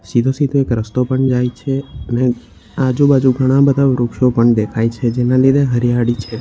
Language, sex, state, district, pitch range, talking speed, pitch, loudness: Gujarati, male, Gujarat, Valsad, 120-135 Hz, 180 wpm, 125 Hz, -15 LUFS